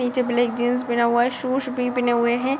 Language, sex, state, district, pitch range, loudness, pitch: Hindi, female, Bihar, Sitamarhi, 240-255 Hz, -21 LUFS, 245 Hz